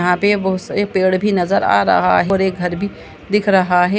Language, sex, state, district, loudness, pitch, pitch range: Hindi, female, Uttar Pradesh, Budaun, -16 LUFS, 190 Hz, 180-205 Hz